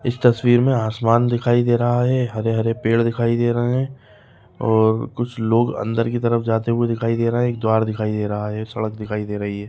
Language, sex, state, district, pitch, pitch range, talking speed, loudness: Hindi, male, Maharashtra, Nagpur, 115 Hz, 110-120 Hz, 230 wpm, -20 LUFS